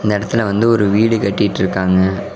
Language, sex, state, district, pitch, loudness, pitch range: Tamil, male, Tamil Nadu, Namakkal, 100 Hz, -15 LUFS, 95-115 Hz